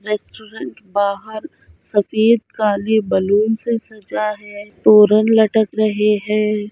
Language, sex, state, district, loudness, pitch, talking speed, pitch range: Hindi, female, Bihar, Kishanganj, -16 LUFS, 215 Hz, 105 wpm, 210-220 Hz